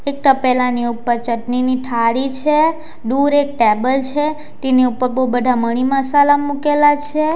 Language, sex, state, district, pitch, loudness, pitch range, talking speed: Gujarati, female, Gujarat, Valsad, 260 Hz, -16 LUFS, 245-290 Hz, 145 wpm